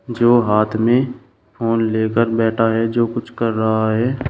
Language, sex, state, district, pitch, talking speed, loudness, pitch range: Hindi, male, Uttar Pradesh, Shamli, 115 Hz, 170 wpm, -17 LUFS, 110-120 Hz